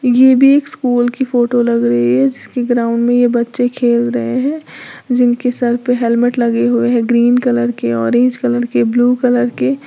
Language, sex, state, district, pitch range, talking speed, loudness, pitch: Hindi, female, Uttar Pradesh, Lalitpur, 235-250 Hz, 200 wpm, -13 LUFS, 245 Hz